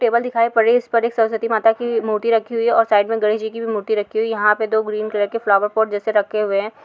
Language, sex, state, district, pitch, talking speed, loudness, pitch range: Hindi, female, Uttar Pradesh, Hamirpur, 220 Hz, 335 wpm, -18 LUFS, 215-230 Hz